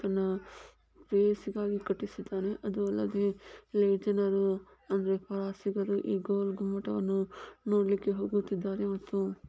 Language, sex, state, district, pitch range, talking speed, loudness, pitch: Kannada, female, Karnataka, Bijapur, 195-205 Hz, 80 wpm, -32 LUFS, 200 Hz